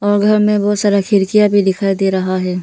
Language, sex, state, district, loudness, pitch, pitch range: Hindi, female, Arunachal Pradesh, Lower Dibang Valley, -14 LUFS, 200 Hz, 190-205 Hz